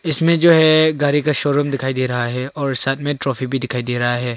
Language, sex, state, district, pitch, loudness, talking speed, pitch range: Hindi, male, Arunachal Pradesh, Longding, 135 Hz, -17 LUFS, 275 wpm, 130-150 Hz